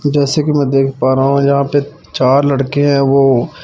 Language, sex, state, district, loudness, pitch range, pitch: Hindi, male, Punjab, Pathankot, -13 LUFS, 135-145 Hz, 140 Hz